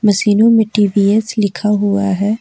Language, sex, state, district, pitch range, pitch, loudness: Hindi, female, Jharkhand, Ranchi, 200-215 Hz, 210 Hz, -13 LUFS